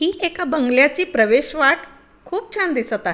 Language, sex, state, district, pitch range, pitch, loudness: Marathi, female, Maharashtra, Aurangabad, 255-355 Hz, 280 Hz, -18 LUFS